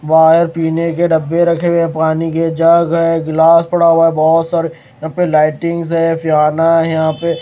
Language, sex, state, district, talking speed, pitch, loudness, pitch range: Hindi, male, Maharashtra, Mumbai Suburban, 210 wpm, 165 Hz, -12 LUFS, 160-170 Hz